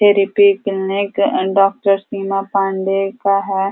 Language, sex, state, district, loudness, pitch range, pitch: Hindi, female, Uttar Pradesh, Ghazipur, -16 LUFS, 195-200 Hz, 195 Hz